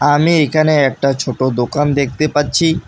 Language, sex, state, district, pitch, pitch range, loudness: Bengali, male, West Bengal, Alipurduar, 145 Hz, 135-155 Hz, -14 LUFS